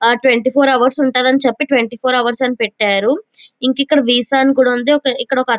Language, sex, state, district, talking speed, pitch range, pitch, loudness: Telugu, female, Andhra Pradesh, Chittoor, 205 wpm, 245-270 Hz, 255 Hz, -14 LUFS